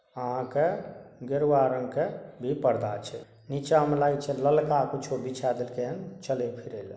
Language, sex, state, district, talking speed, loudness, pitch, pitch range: Maithili, male, Bihar, Saharsa, 180 wpm, -28 LUFS, 140 Hz, 125-150 Hz